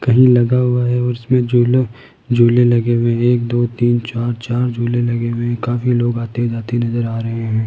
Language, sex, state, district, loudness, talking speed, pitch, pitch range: Hindi, male, Rajasthan, Jaipur, -16 LUFS, 220 wpm, 120 Hz, 115-120 Hz